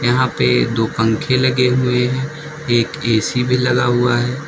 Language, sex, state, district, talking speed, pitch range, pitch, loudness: Hindi, male, Uttar Pradesh, Lucknow, 175 wpm, 120-130 Hz, 125 Hz, -16 LUFS